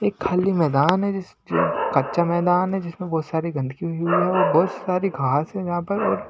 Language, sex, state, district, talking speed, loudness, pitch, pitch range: Hindi, male, Maharashtra, Washim, 230 wpm, -22 LUFS, 175 Hz, 165-190 Hz